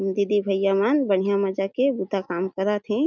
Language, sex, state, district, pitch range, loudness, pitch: Chhattisgarhi, female, Chhattisgarh, Jashpur, 195-205 Hz, -23 LUFS, 195 Hz